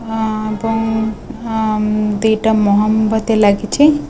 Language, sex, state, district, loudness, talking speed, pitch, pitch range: Odia, female, Odisha, Khordha, -15 LUFS, 75 wpm, 220 Hz, 215-225 Hz